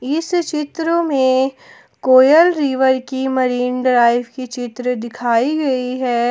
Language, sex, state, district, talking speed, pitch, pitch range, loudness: Hindi, female, Jharkhand, Palamu, 125 wpm, 260 Hz, 250-290 Hz, -16 LUFS